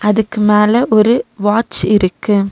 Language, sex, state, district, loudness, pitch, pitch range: Tamil, female, Tamil Nadu, Nilgiris, -13 LUFS, 210 Hz, 205-225 Hz